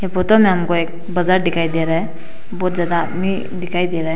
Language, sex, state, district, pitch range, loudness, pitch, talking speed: Hindi, female, Arunachal Pradesh, Papum Pare, 165-185 Hz, -18 LUFS, 175 Hz, 245 wpm